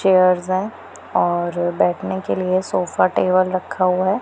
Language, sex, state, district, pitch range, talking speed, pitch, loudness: Hindi, female, Punjab, Pathankot, 175-185 Hz, 155 wpm, 185 Hz, -19 LUFS